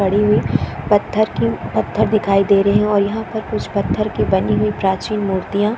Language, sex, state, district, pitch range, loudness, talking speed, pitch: Hindi, female, Chhattisgarh, Korba, 195-210 Hz, -17 LUFS, 195 wpm, 205 Hz